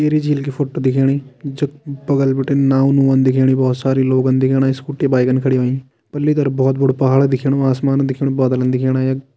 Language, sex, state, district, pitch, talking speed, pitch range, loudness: Kumaoni, male, Uttarakhand, Tehri Garhwal, 135 Hz, 190 wpm, 130-140 Hz, -16 LUFS